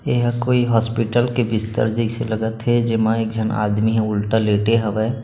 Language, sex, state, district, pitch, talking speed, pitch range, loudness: Chhattisgarhi, male, Chhattisgarh, Bilaspur, 110 Hz, 195 wpm, 110-115 Hz, -19 LUFS